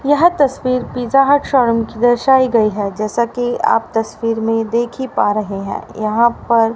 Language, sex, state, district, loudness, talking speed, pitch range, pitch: Hindi, female, Haryana, Rohtak, -16 LUFS, 160 wpm, 225-260 Hz, 235 Hz